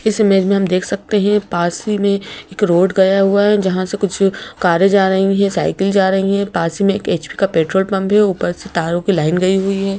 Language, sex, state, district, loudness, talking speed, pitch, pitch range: Hindi, female, Madhya Pradesh, Bhopal, -15 LUFS, 250 wpm, 195 Hz, 185-200 Hz